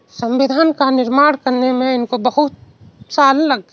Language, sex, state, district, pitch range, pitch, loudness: Hindi, male, Uttar Pradesh, Varanasi, 255-290 Hz, 265 Hz, -15 LUFS